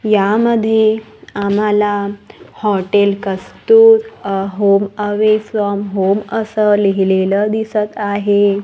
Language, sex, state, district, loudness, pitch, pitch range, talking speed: Marathi, female, Maharashtra, Gondia, -14 LUFS, 205 Hz, 200-215 Hz, 90 wpm